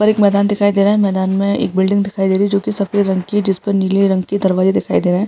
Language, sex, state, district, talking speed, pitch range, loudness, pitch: Hindi, male, Uttarakhand, Tehri Garhwal, 350 wpm, 190-205 Hz, -15 LUFS, 200 Hz